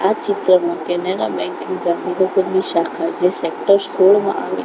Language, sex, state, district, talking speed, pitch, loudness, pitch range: Gujarati, female, Gujarat, Gandhinagar, 140 wpm, 185 Hz, -17 LUFS, 180-195 Hz